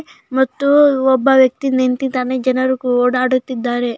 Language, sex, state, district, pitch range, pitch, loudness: Kannada, female, Karnataka, Gulbarga, 250-265 Hz, 260 Hz, -15 LUFS